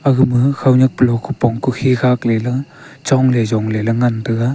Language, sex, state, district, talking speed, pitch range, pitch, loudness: Wancho, male, Arunachal Pradesh, Longding, 145 wpm, 115-135 Hz, 125 Hz, -15 LUFS